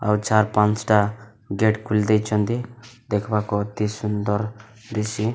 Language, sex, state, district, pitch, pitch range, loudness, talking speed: Odia, male, Odisha, Malkangiri, 105 Hz, 105-110 Hz, -22 LUFS, 125 wpm